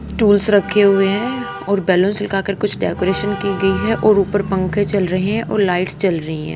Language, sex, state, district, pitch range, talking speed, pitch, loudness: Hindi, female, Haryana, Charkhi Dadri, 190-205 Hz, 210 wpm, 200 Hz, -17 LUFS